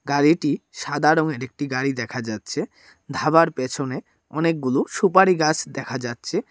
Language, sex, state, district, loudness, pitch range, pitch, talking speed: Bengali, male, Tripura, Dhalai, -22 LUFS, 130-155 Hz, 140 Hz, 130 wpm